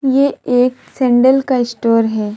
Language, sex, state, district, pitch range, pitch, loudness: Hindi, female, West Bengal, Alipurduar, 230-265 Hz, 250 Hz, -14 LUFS